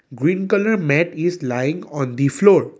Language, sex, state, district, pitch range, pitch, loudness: English, male, Assam, Kamrup Metropolitan, 140-180 Hz, 160 Hz, -19 LUFS